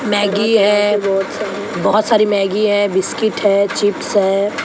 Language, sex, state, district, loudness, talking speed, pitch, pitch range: Hindi, female, Maharashtra, Mumbai Suburban, -15 LUFS, 130 wpm, 205 Hz, 200-210 Hz